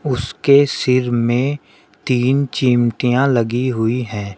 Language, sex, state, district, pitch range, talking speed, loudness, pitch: Hindi, male, Uttar Pradesh, Shamli, 120-135 Hz, 110 wpm, -16 LUFS, 125 Hz